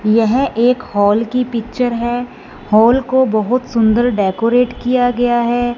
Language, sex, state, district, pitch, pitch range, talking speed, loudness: Hindi, female, Punjab, Fazilka, 240 Hz, 225-250 Hz, 145 wpm, -15 LUFS